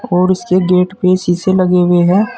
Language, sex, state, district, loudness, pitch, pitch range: Hindi, male, Uttar Pradesh, Saharanpur, -12 LUFS, 185 Hz, 180-185 Hz